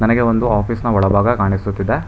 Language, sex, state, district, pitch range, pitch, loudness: Kannada, male, Karnataka, Bangalore, 100-115 Hz, 105 Hz, -16 LUFS